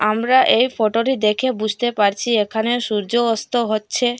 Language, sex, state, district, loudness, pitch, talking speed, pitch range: Bengali, female, Assam, Hailakandi, -18 LUFS, 230 Hz, 145 wpm, 215-245 Hz